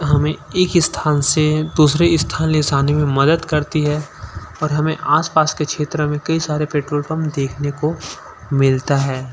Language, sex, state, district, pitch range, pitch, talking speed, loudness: Hindi, male, Chhattisgarh, Sukma, 145-155 Hz, 150 Hz, 165 wpm, -17 LUFS